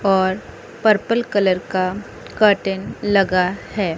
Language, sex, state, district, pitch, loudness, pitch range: Hindi, female, Chandigarh, Chandigarh, 195 Hz, -19 LUFS, 185-205 Hz